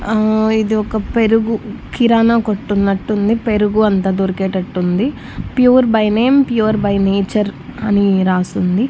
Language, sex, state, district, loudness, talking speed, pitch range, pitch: Telugu, female, Andhra Pradesh, Annamaya, -15 LUFS, 115 wpm, 200-225 Hz, 215 Hz